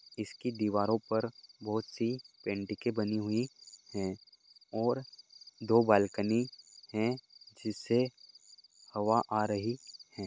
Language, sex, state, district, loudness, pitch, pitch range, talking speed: Hindi, male, Goa, North and South Goa, -33 LUFS, 110 Hz, 105-120 Hz, 105 wpm